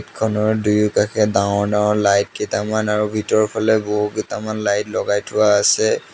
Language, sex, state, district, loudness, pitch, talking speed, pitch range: Assamese, male, Assam, Sonitpur, -18 LUFS, 105 Hz, 125 wpm, 105-110 Hz